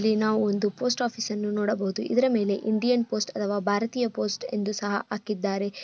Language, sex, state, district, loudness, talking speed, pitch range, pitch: Kannada, female, Karnataka, Bellary, -26 LUFS, 175 wpm, 205-230 Hz, 210 Hz